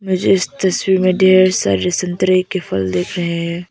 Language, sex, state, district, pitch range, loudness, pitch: Hindi, female, Arunachal Pradesh, Papum Pare, 170-185 Hz, -15 LUFS, 185 Hz